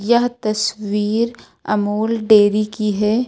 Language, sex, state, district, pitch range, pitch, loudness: Hindi, female, Uttar Pradesh, Lucknow, 210-230 Hz, 215 Hz, -18 LUFS